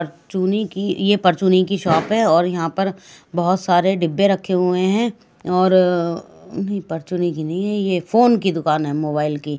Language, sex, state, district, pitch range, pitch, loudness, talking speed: Hindi, female, Bihar, Katihar, 170-195 Hz, 185 Hz, -18 LUFS, 180 wpm